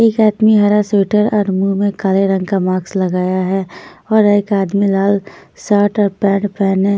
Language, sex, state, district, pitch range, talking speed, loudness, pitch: Hindi, female, Punjab, Fazilka, 195-205 Hz, 190 wpm, -14 LUFS, 200 Hz